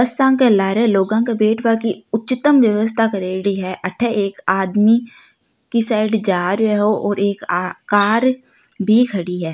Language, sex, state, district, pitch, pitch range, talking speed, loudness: Marwari, female, Rajasthan, Nagaur, 215 Hz, 195-230 Hz, 155 wpm, -17 LUFS